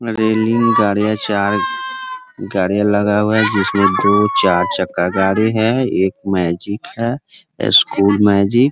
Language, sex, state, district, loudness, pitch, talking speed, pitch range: Hindi, male, Bihar, Muzaffarpur, -15 LUFS, 105 Hz, 125 wpm, 100-115 Hz